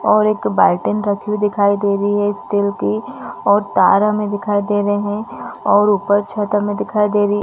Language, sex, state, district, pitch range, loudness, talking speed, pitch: Hindi, female, Chhattisgarh, Balrampur, 205-210 Hz, -16 LUFS, 195 wpm, 205 Hz